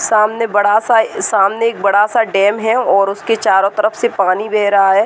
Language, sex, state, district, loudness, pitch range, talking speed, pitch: Hindi, female, Uttar Pradesh, Deoria, -13 LUFS, 195-225 Hz, 200 wpm, 210 Hz